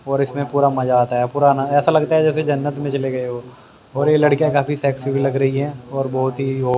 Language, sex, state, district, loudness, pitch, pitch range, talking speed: Hindi, male, Haryana, Jhajjar, -18 LUFS, 140 Hz, 130-145 Hz, 265 wpm